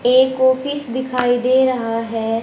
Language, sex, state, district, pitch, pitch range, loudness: Hindi, female, Haryana, Rohtak, 255 Hz, 230-260 Hz, -17 LUFS